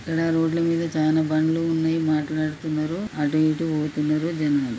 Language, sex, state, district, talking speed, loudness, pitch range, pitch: Telugu, male, Telangana, Karimnagar, 150 wpm, -23 LUFS, 155-165 Hz, 155 Hz